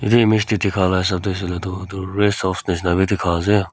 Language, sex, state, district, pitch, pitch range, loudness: Nagamese, female, Nagaland, Kohima, 95 Hz, 90-105 Hz, -19 LUFS